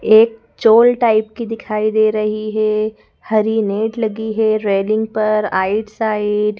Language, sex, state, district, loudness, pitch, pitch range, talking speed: Hindi, female, Madhya Pradesh, Bhopal, -16 LUFS, 215 Hz, 215-220 Hz, 155 wpm